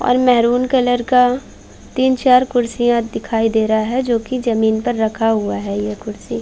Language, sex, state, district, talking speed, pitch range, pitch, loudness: Hindi, female, Chhattisgarh, Bilaspur, 185 wpm, 220-250 Hz, 240 Hz, -16 LUFS